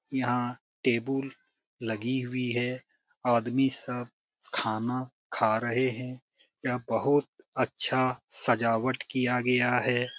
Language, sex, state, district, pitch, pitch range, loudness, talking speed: Hindi, male, Bihar, Jamui, 125 Hz, 120-130 Hz, -29 LUFS, 105 wpm